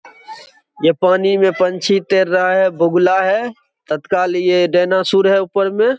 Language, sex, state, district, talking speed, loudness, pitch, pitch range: Hindi, male, Bihar, Begusarai, 150 wpm, -15 LUFS, 190 Hz, 180-195 Hz